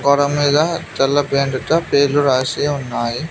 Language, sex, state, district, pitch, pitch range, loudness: Telugu, male, Telangana, Mahabubabad, 145 Hz, 135-145 Hz, -17 LUFS